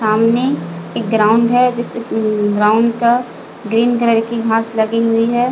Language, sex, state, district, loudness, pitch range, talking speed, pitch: Hindi, female, Chhattisgarh, Bilaspur, -15 LUFS, 220-235 Hz, 165 wpm, 230 Hz